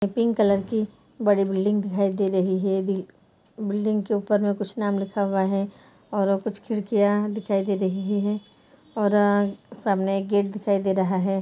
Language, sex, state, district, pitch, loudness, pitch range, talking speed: Hindi, female, Bihar, Araria, 200 Hz, -24 LUFS, 195-210 Hz, 175 wpm